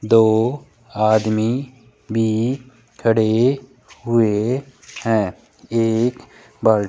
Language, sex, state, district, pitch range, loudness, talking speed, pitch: Hindi, male, Rajasthan, Jaipur, 110-125 Hz, -19 LUFS, 80 wpm, 115 Hz